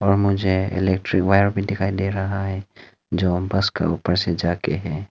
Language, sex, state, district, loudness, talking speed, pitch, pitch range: Hindi, male, Arunachal Pradesh, Longding, -21 LUFS, 200 wpm, 95 Hz, 90-100 Hz